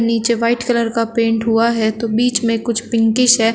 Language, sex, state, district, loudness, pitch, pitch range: Hindi, female, Uttar Pradesh, Shamli, -16 LUFS, 230 Hz, 225-235 Hz